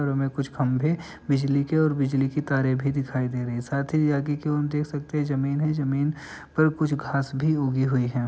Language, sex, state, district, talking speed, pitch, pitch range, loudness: Hindi, male, Uttar Pradesh, Ghazipur, 255 wpm, 140 Hz, 135-150 Hz, -25 LUFS